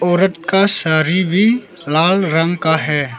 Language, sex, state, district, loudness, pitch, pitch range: Hindi, male, Arunachal Pradesh, Lower Dibang Valley, -15 LUFS, 175 Hz, 160-190 Hz